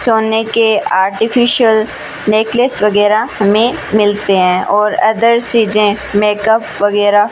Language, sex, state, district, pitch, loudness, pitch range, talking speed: Hindi, female, Rajasthan, Bikaner, 215 Hz, -12 LUFS, 205-230 Hz, 115 wpm